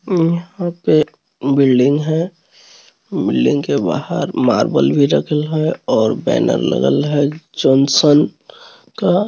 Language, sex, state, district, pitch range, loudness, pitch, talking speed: Hindi, male, Jharkhand, Garhwa, 145-175 Hz, -16 LUFS, 155 Hz, 115 wpm